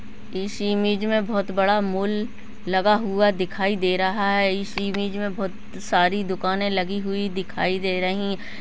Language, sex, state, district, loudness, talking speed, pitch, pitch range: Hindi, female, Uttarakhand, Tehri Garhwal, -23 LUFS, 165 wpm, 200 Hz, 190-205 Hz